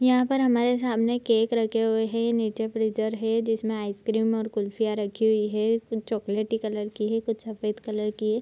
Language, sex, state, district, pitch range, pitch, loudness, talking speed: Hindi, female, Bihar, Araria, 215-230 Hz, 225 Hz, -26 LUFS, 200 wpm